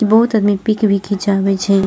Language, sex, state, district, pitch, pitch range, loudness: Maithili, female, Bihar, Purnia, 205 Hz, 195-215 Hz, -15 LUFS